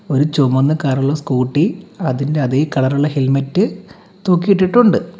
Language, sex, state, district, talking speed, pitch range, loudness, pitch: Malayalam, male, Kerala, Kollam, 105 wpm, 135-185 Hz, -16 LUFS, 150 Hz